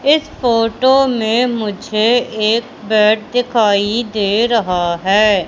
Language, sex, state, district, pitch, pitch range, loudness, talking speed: Hindi, female, Madhya Pradesh, Katni, 220 Hz, 210-240 Hz, -15 LUFS, 110 wpm